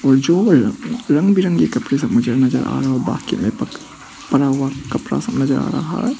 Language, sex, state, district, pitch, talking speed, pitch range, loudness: Hindi, male, Arunachal Pradesh, Papum Pare, 135 Hz, 185 wpm, 135-190 Hz, -17 LUFS